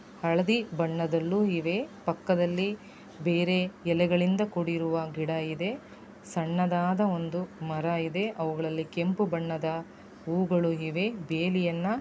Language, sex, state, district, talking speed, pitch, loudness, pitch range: Kannada, female, Karnataka, Dakshina Kannada, 95 wpm, 175 Hz, -29 LUFS, 165-185 Hz